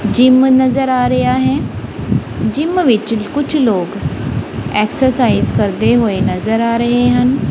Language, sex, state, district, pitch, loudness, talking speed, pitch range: Punjabi, female, Punjab, Kapurthala, 235 Hz, -14 LUFS, 130 wpm, 200-260 Hz